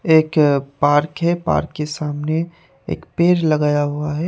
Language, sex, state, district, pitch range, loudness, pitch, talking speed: Hindi, male, Haryana, Charkhi Dadri, 145-170 Hz, -18 LUFS, 155 Hz, 155 wpm